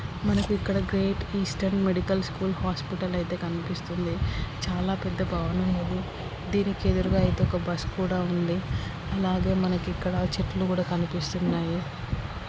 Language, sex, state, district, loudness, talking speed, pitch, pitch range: Telugu, female, Andhra Pradesh, Srikakulam, -28 LUFS, 125 wpm, 170 Hz, 115-185 Hz